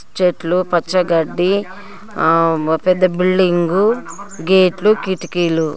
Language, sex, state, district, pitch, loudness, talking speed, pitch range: Telugu, female, Andhra Pradesh, Guntur, 180 Hz, -16 LUFS, 75 wpm, 170-190 Hz